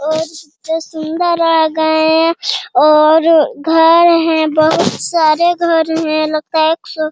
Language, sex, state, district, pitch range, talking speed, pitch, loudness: Hindi, male, Bihar, Jamui, 315-330 Hz, 150 wpm, 320 Hz, -12 LUFS